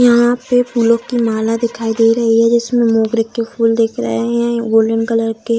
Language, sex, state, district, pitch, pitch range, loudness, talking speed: Hindi, female, Bihar, Samastipur, 230 Hz, 225-235 Hz, -14 LUFS, 215 wpm